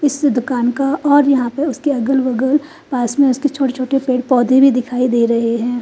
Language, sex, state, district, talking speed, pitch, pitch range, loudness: Hindi, female, Chandigarh, Chandigarh, 215 wpm, 265 Hz, 245-285 Hz, -15 LUFS